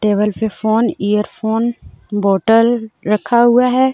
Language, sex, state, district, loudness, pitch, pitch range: Hindi, female, Jharkhand, Deoghar, -15 LUFS, 220 Hz, 210-235 Hz